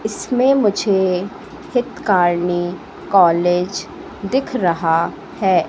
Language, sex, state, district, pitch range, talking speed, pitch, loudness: Hindi, female, Madhya Pradesh, Katni, 175-245 Hz, 85 wpm, 190 Hz, -17 LUFS